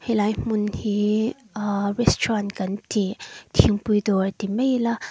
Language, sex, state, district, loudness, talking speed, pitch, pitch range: Mizo, female, Mizoram, Aizawl, -23 LUFS, 150 wpm, 210 Hz, 200-225 Hz